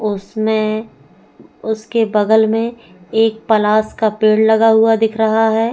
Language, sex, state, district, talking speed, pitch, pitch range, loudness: Hindi, female, Goa, North and South Goa, 135 wpm, 220 Hz, 215-225 Hz, -15 LUFS